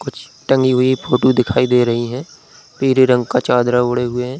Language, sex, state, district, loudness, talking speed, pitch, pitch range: Hindi, male, Uttar Pradesh, Budaun, -15 LUFS, 205 wpm, 125 Hz, 125-130 Hz